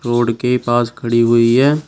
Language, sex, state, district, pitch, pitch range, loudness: Hindi, male, Uttar Pradesh, Shamli, 120 Hz, 115-125 Hz, -15 LUFS